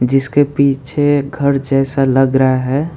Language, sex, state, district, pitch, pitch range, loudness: Hindi, male, West Bengal, Alipurduar, 135 Hz, 135-140 Hz, -14 LUFS